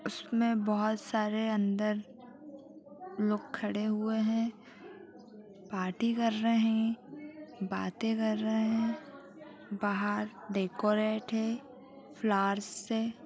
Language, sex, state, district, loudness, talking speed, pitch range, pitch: Hindi, female, Bihar, Purnia, -32 LUFS, 100 wpm, 210-245 Hz, 225 Hz